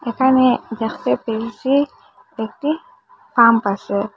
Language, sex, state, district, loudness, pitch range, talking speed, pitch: Bengali, female, Assam, Hailakandi, -18 LUFS, 220-280 Hz, 100 wpm, 235 Hz